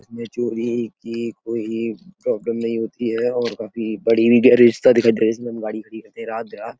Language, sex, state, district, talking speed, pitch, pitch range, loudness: Hindi, male, Uttar Pradesh, Etah, 195 wpm, 115 Hz, 115-120 Hz, -19 LUFS